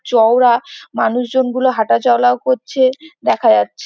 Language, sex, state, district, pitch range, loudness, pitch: Bengali, female, West Bengal, North 24 Parganas, 240-260 Hz, -14 LUFS, 250 Hz